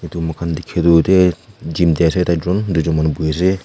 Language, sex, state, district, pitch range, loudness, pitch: Nagamese, female, Nagaland, Kohima, 80-90 Hz, -16 LUFS, 85 Hz